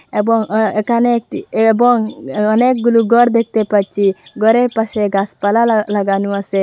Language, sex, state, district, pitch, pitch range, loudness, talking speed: Bengali, female, Assam, Hailakandi, 220 Hz, 205-235 Hz, -14 LUFS, 135 wpm